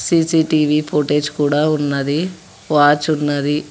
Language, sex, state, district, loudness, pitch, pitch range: Telugu, male, Telangana, Hyderabad, -16 LUFS, 150 Hz, 145-155 Hz